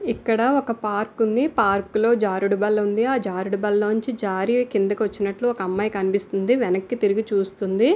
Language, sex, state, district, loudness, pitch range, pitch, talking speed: Telugu, female, Andhra Pradesh, Visakhapatnam, -22 LUFS, 200-230 Hz, 210 Hz, 165 wpm